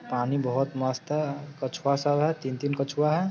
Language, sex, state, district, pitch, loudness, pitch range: Hindi, male, Bihar, Sitamarhi, 140 Hz, -28 LUFS, 130-150 Hz